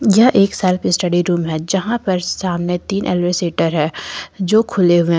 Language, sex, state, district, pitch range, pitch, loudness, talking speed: Hindi, female, Jharkhand, Ranchi, 175-195 Hz, 180 Hz, -16 LUFS, 175 wpm